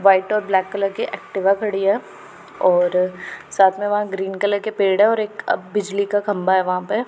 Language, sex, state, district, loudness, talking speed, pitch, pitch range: Hindi, female, Punjab, Pathankot, -19 LUFS, 210 wpm, 200 Hz, 190-205 Hz